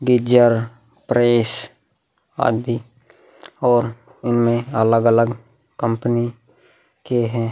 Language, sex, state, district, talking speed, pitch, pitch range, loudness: Hindi, male, Bihar, Vaishali, 80 wpm, 120 Hz, 115-120 Hz, -19 LUFS